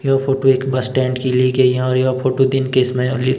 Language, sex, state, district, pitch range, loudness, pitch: Hindi, male, Himachal Pradesh, Shimla, 130-135 Hz, -16 LUFS, 130 Hz